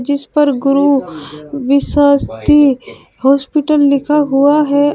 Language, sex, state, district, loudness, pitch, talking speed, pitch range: Hindi, female, Uttar Pradesh, Shamli, -12 LUFS, 280 Hz, 95 wpm, 275-290 Hz